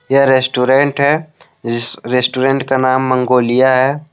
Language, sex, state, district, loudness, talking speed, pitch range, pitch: Hindi, male, Jharkhand, Deoghar, -13 LUFS, 115 wpm, 125-140 Hz, 130 Hz